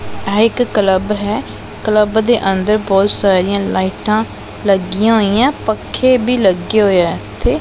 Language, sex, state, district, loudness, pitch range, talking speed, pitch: Punjabi, male, Punjab, Pathankot, -14 LUFS, 195-220 Hz, 140 wpm, 210 Hz